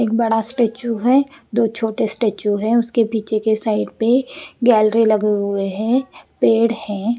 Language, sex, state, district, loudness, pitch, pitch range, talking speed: Hindi, female, Bihar, West Champaran, -18 LUFS, 225 Hz, 215-235 Hz, 160 wpm